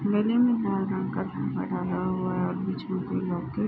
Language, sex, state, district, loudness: Hindi, female, Bihar, Araria, -28 LUFS